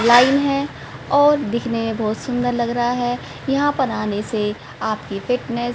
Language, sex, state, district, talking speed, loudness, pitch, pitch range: Hindi, female, Haryana, Rohtak, 165 wpm, -20 LUFS, 240 Hz, 225-265 Hz